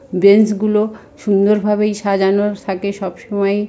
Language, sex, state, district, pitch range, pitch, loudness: Bengali, female, West Bengal, North 24 Parganas, 200-210 Hz, 205 Hz, -16 LUFS